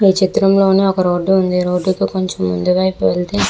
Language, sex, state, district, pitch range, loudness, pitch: Telugu, female, Andhra Pradesh, Visakhapatnam, 180-190 Hz, -15 LUFS, 185 Hz